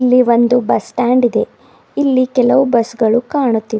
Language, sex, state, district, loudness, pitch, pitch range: Kannada, female, Karnataka, Bidar, -14 LUFS, 245 Hz, 235-255 Hz